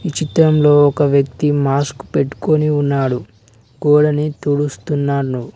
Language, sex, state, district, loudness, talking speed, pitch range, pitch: Telugu, male, Telangana, Mahabubabad, -16 LUFS, 95 wpm, 135-150 Hz, 145 Hz